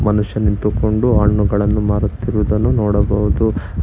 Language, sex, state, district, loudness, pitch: Kannada, male, Karnataka, Bangalore, -16 LUFS, 105 Hz